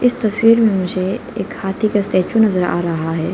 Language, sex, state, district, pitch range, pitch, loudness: Hindi, female, Arunachal Pradesh, Lower Dibang Valley, 185-225 Hz, 200 Hz, -17 LUFS